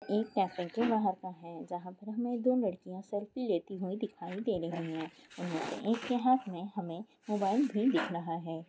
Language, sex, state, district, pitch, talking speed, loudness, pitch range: Hindi, female, Rajasthan, Nagaur, 195 Hz, 205 wpm, -34 LUFS, 175-230 Hz